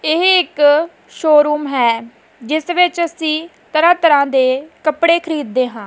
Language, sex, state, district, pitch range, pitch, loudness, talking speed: Punjabi, female, Punjab, Kapurthala, 260-335 Hz, 305 Hz, -14 LUFS, 135 wpm